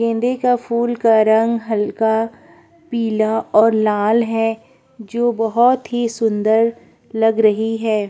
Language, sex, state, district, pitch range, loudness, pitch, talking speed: Hindi, female, Uttar Pradesh, Budaun, 220-235 Hz, -17 LUFS, 225 Hz, 125 wpm